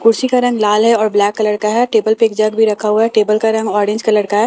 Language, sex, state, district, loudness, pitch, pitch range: Hindi, female, Bihar, Katihar, -13 LUFS, 215 Hz, 210-225 Hz